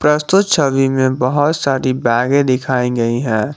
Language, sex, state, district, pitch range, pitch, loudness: Hindi, male, Jharkhand, Garhwa, 125-145 Hz, 130 Hz, -15 LUFS